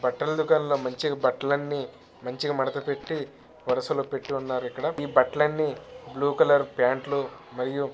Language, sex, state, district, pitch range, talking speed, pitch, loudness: Telugu, male, Telangana, Nalgonda, 130-145 Hz, 120 wpm, 140 Hz, -26 LUFS